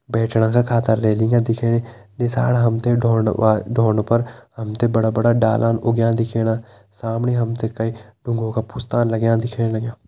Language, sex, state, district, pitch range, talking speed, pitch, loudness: Hindi, male, Uttarakhand, Tehri Garhwal, 110-120 Hz, 165 wpm, 115 Hz, -19 LUFS